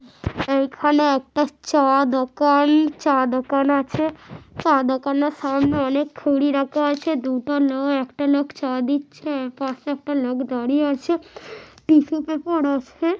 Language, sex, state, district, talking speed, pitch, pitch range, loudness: Bengali, female, West Bengal, North 24 Parganas, 130 wpm, 285 Hz, 270-295 Hz, -21 LUFS